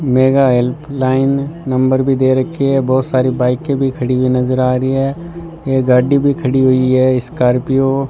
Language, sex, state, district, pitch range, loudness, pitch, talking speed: Hindi, male, Rajasthan, Bikaner, 130-135 Hz, -14 LUFS, 130 Hz, 185 wpm